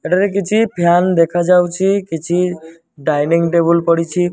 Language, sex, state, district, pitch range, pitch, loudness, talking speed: Odia, male, Odisha, Malkangiri, 165-180 Hz, 175 Hz, -15 LUFS, 110 wpm